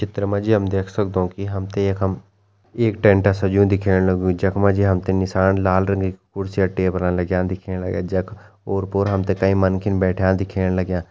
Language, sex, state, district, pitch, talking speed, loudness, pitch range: Hindi, male, Uttarakhand, Tehri Garhwal, 95 Hz, 190 wpm, -20 LUFS, 95-100 Hz